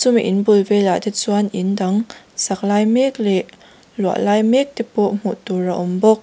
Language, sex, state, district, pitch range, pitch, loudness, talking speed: Mizo, female, Mizoram, Aizawl, 195-220 Hz, 205 Hz, -18 LUFS, 210 wpm